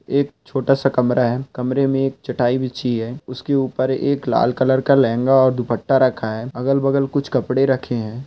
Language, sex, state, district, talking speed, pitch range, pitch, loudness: Hindi, male, Rajasthan, Churu, 205 wpm, 125-135 Hz, 130 Hz, -19 LUFS